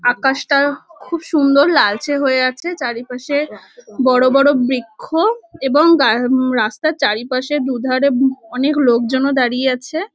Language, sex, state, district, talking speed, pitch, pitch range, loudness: Bengali, female, West Bengal, North 24 Parganas, 120 wpm, 270 Hz, 255-290 Hz, -15 LUFS